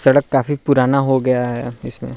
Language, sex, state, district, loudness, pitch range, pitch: Hindi, male, Arunachal Pradesh, Lower Dibang Valley, -17 LUFS, 125-135 Hz, 130 Hz